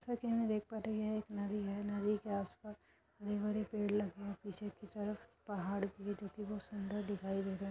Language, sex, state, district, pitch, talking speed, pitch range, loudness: Hindi, female, Uttar Pradesh, Etah, 205 Hz, 220 wpm, 200-210 Hz, -41 LUFS